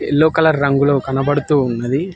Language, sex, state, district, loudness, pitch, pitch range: Telugu, male, Telangana, Hyderabad, -16 LUFS, 140 Hz, 135-150 Hz